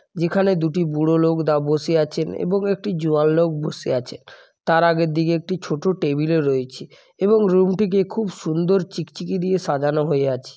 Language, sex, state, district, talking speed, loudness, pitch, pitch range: Bengali, male, West Bengal, Paschim Medinipur, 175 wpm, -20 LUFS, 165 Hz, 155-185 Hz